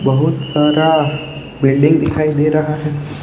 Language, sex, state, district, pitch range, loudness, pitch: Hindi, male, Gujarat, Valsad, 145-155 Hz, -15 LUFS, 150 Hz